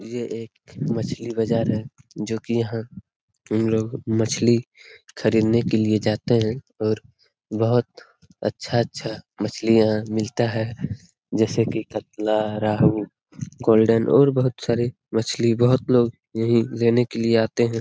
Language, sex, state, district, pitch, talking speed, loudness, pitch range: Hindi, male, Bihar, Lakhisarai, 115 Hz, 135 wpm, -22 LUFS, 110-120 Hz